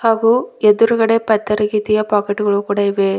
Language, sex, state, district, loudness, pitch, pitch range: Kannada, female, Karnataka, Bidar, -15 LUFS, 210 Hz, 205-225 Hz